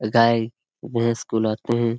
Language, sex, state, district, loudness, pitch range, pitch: Hindi, male, Bihar, Lakhisarai, -22 LUFS, 110-120 Hz, 115 Hz